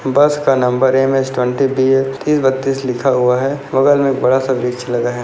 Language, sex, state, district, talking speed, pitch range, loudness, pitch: Hindi, male, Maharashtra, Dhule, 205 wpm, 125-135 Hz, -15 LUFS, 135 Hz